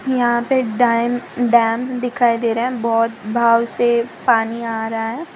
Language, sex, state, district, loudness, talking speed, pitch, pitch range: Hindi, female, Gujarat, Valsad, -18 LUFS, 165 wpm, 235 Hz, 230-245 Hz